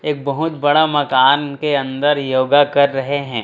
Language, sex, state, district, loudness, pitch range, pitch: Hindi, male, Chhattisgarh, Raipur, -16 LUFS, 135-145 Hz, 145 Hz